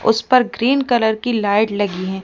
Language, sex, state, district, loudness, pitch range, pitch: Hindi, female, Rajasthan, Jaipur, -17 LUFS, 205-245 Hz, 225 Hz